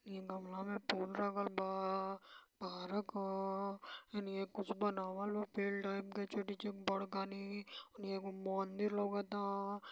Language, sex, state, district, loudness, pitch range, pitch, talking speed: Bhojpuri, male, Uttar Pradesh, Varanasi, -42 LUFS, 195-205 Hz, 200 Hz, 140 wpm